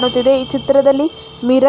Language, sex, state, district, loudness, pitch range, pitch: Kannada, female, Karnataka, Bangalore, -15 LUFS, 255-275 Hz, 270 Hz